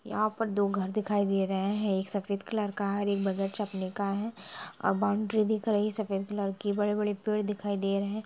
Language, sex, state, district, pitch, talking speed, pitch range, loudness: Hindi, female, Bihar, Sitamarhi, 205 Hz, 255 wpm, 195-210 Hz, -30 LUFS